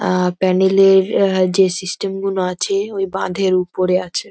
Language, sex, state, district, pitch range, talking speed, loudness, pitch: Bengali, female, West Bengal, North 24 Parganas, 185-195 Hz, 165 wpm, -16 LUFS, 190 Hz